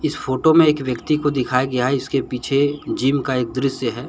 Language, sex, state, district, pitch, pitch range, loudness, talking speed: Hindi, male, Jharkhand, Deoghar, 135 Hz, 125-145 Hz, -19 LUFS, 235 wpm